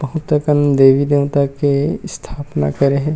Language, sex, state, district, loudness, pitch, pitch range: Chhattisgarhi, male, Chhattisgarh, Rajnandgaon, -15 LUFS, 145 Hz, 140-145 Hz